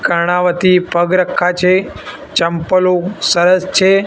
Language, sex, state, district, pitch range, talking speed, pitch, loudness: Gujarati, male, Gujarat, Gandhinagar, 175-185 Hz, 105 wpm, 180 Hz, -13 LUFS